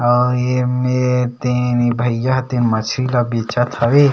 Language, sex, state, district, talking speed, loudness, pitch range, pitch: Chhattisgarhi, male, Chhattisgarh, Sarguja, 175 wpm, -17 LUFS, 120-125 Hz, 125 Hz